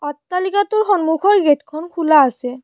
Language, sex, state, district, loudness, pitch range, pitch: Assamese, female, Assam, Kamrup Metropolitan, -16 LUFS, 290-390 Hz, 320 Hz